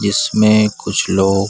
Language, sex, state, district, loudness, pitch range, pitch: Hindi, male, Chhattisgarh, Bilaspur, -14 LUFS, 95-105 Hz, 100 Hz